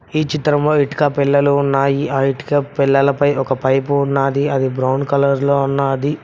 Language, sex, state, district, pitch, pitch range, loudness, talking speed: Telugu, male, Telangana, Mahabubabad, 140 Hz, 135-145 Hz, -16 LUFS, 165 wpm